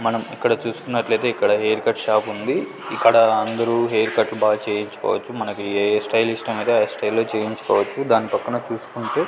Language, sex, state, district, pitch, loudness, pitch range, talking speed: Telugu, male, Andhra Pradesh, Sri Satya Sai, 110 Hz, -20 LUFS, 105-115 Hz, 175 wpm